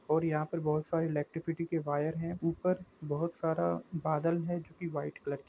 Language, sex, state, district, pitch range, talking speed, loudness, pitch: Hindi, male, Jharkhand, Jamtara, 150-170 Hz, 205 wpm, -34 LUFS, 165 Hz